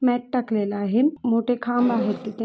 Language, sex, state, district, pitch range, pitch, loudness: Marathi, female, Maharashtra, Sindhudurg, 215-245 Hz, 240 Hz, -23 LUFS